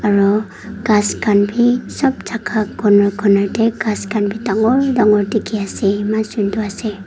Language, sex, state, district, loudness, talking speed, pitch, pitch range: Nagamese, female, Nagaland, Dimapur, -16 LUFS, 160 wpm, 210 Hz, 205-220 Hz